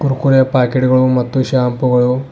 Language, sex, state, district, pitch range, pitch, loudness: Kannada, male, Karnataka, Bidar, 125-130 Hz, 130 Hz, -13 LUFS